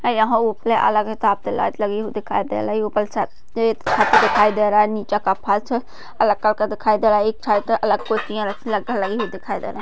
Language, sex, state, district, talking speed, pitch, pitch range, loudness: Hindi, female, Maharashtra, Sindhudurg, 225 wpm, 215 Hz, 210-220 Hz, -19 LUFS